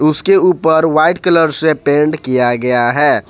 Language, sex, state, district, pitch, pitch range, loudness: Hindi, male, Jharkhand, Ranchi, 155 Hz, 135-160 Hz, -12 LUFS